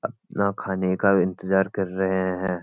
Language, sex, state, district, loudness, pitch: Hindi, male, Uttarakhand, Uttarkashi, -24 LUFS, 95 Hz